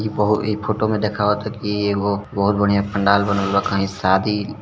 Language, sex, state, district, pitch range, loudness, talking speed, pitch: Hindi, male, Bihar, Sitamarhi, 100-105 Hz, -19 LUFS, 210 wpm, 105 Hz